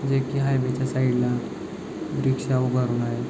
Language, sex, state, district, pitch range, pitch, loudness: Marathi, male, Maharashtra, Chandrapur, 125-135 Hz, 130 Hz, -25 LUFS